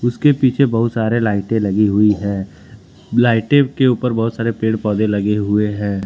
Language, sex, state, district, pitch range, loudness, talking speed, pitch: Hindi, male, Jharkhand, Ranchi, 105-120 Hz, -16 LUFS, 180 wpm, 110 Hz